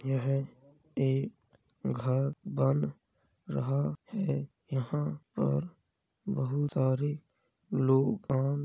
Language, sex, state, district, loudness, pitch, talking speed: Hindi, male, Uttar Pradesh, Jalaun, -32 LUFS, 135 Hz, 90 wpm